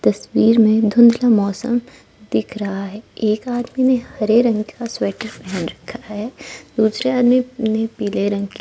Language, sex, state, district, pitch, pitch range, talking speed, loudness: Hindi, female, Arunachal Pradesh, Lower Dibang Valley, 225 Hz, 210-245 Hz, 165 wpm, -18 LUFS